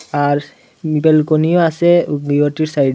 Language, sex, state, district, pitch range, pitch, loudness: Bengali, male, Tripura, Unakoti, 145-160 Hz, 155 Hz, -15 LUFS